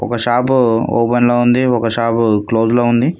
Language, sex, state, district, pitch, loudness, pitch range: Telugu, male, Telangana, Mahabubabad, 120 Hz, -14 LUFS, 115-120 Hz